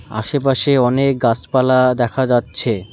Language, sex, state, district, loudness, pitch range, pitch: Bengali, male, West Bengal, Alipurduar, -16 LUFS, 115-135 Hz, 125 Hz